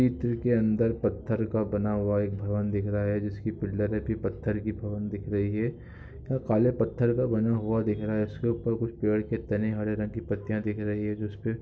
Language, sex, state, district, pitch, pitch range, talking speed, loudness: Hindi, male, Andhra Pradesh, Guntur, 105 Hz, 105-115 Hz, 235 wpm, -29 LUFS